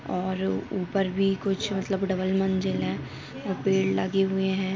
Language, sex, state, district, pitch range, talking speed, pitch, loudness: Hindi, female, Uttarakhand, Tehri Garhwal, 185-195 Hz, 165 wpm, 190 Hz, -27 LUFS